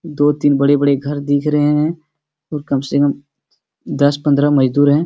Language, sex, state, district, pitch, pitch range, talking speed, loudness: Hindi, male, Bihar, Supaul, 145 Hz, 140-150 Hz, 165 wpm, -15 LUFS